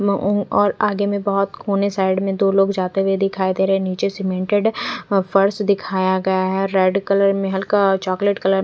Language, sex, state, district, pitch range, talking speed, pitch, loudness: Hindi, female, Chandigarh, Chandigarh, 190-200 Hz, 200 wpm, 195 Hz, -19 LUFS